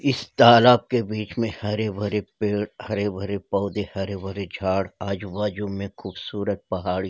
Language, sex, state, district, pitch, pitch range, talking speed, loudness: Hindi, male, Bihar, Gopalganj, 105 Hz, 100-105 Hz, 135 wpm, -23 LUFS